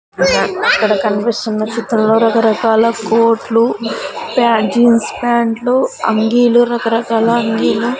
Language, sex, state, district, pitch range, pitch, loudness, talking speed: Telugu, female, Andhra Pradesh, Sri Satya Sai, 225-235 Hz, 230 Hz, -13 LUFS, 90 wpm